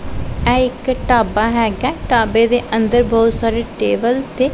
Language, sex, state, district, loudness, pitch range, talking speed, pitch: Punjabi, female, Punjab, Pathankot, -16 LUFS, 225-250 Hz, 145 wpm, 235 Hz